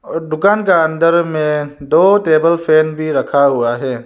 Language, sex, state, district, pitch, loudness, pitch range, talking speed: Hindi, male, Arunachal Pradesh, Lower Dibang Valley, 155 Hz, -13 LUFS, 140-165 Hz, 175 wpm